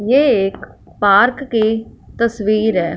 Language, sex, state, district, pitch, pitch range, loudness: Hindi, female, Punjab, Fazilka, 220 Hz, 210-240 Hz, -15 LUFS